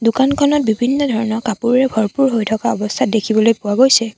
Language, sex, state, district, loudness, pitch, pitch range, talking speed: Assamese, female, Assam, Sonitpur, -15 LUFS, 230 Hz, 220-265 Hz, 160 wpm